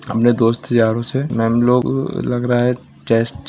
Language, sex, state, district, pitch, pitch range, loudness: Hindi, male, Maharashtra, Nagpur, 120 Hz, 115-125 Hz, -17 LUFS